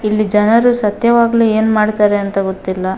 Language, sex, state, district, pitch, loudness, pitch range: Kannada, female, Karnataka, Dakshina Kannada, 215 Hz, -13 LUFS, 200-225 Hz